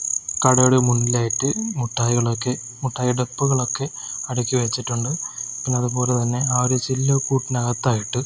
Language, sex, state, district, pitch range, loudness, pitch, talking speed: Malayalam, male, Kerala, Kozhikode, 120-130 Hz, -21 LUFS, 125 Hz, 95 wpm